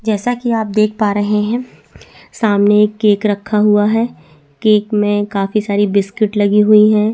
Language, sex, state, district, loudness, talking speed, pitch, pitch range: Hindi, female, Chhattisgarh, Bastar, -14 LUFS, 175 wpm, 210 Hz, 205-215 Hz